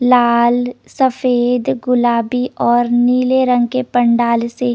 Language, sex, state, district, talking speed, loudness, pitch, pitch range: Hindi, female, Chandigarh, Chandigarh, 125 wpm, -15 LUFS, 245 Hz, 240-250 Hz